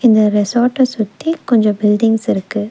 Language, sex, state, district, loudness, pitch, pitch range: Tamil, female, Tamil Nadu, Nilgiris, -14 LUFS, 215 Hz, 205-240 Hz